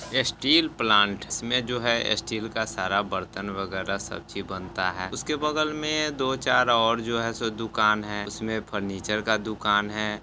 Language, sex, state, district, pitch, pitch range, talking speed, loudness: Hindi, male, Bihar, Sitamarhi, 110 Hz, 100-120 Hz, 175 wpm, -25 LUFS